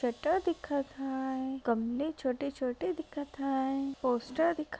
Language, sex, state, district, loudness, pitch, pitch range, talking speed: Marathi, female, Maharashtra, Sindhudurg, -33 LUFS, 270 Hz, 260-300 Hz, 110 wpm